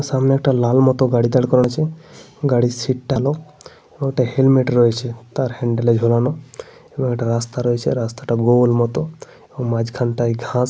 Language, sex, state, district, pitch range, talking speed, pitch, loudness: Bengali, male, Jharkhand, Sahebganj, 120-135 Hz, 180 wpm, 125 Hz, -18 LUFS